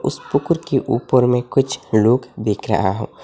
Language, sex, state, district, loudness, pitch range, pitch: Hindi, male, Assam, Hailakandi, -18 LUFS, 110-135 Hz, 125 Hz